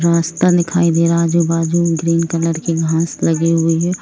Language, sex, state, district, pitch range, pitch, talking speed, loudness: Hindi, female, Jharkhand, Jamtara, 165-170 Hz, 165 Hz, 210 wpm, -15 LUFS